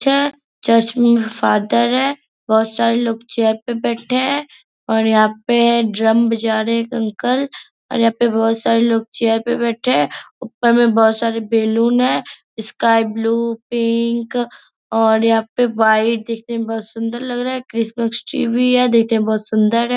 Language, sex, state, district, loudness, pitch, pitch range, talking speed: Hindi, female, Bihar, Purnia, -16 LUFS, 230 Hz, 225-240 Hz, 180 wpm